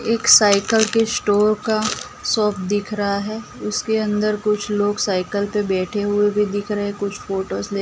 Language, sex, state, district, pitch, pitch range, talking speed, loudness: Hindi, female, Gujarat, Gandhinagar, 210 Hz, 205-215 Hz, 175 wpm, -19 LUFS